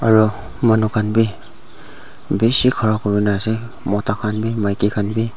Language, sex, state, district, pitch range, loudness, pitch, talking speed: Nagamese, male, Nagaland, Dimapur, 105-110 Hz, -18 LUFS, 110 Hz, 155 wpm